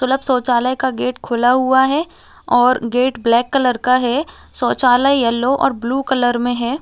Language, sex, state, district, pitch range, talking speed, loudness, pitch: Hindi, female, Chhattisgarh, Balrampur, 245-265 Hz, 175 wpm, -16 LUFS, 255 Hz